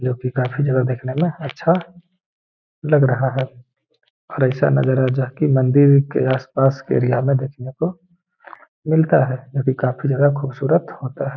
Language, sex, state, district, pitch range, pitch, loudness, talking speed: Hindi, male, Bihar, Gaya, 130-150 Hz, 135 Hz, -18 LUFS, 170 wpm